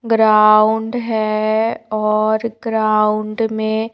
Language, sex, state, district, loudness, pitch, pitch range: Hindi, female, Madhya Pradesh, Bhopal, -16 LUFS, 220 Hz, 215-225 Hz